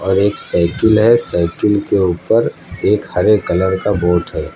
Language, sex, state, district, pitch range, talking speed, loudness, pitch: Hindi, male, Uttar Pradesh, Lucknow, 90-105 Hz, 160 wpm, -15 LUFS, 95 Hz